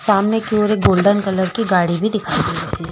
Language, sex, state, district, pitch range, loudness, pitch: Hindi, female, Uttar Pradesh, Budaun, 185-215 Hz, -17 LUFS, 205 Hz